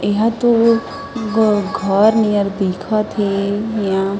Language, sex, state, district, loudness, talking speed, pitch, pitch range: Chhattisgarhi, female, Chhattisgarh, Sarguja, -16 LUFS, 85 wpm, 210 Hz, 200-225 Hz